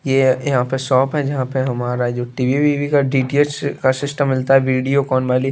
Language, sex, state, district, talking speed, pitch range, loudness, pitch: Hindi, male, Bihar, West Champaran, 215 wpm, 130-140 Hz, -17 LUFS, 135 Hz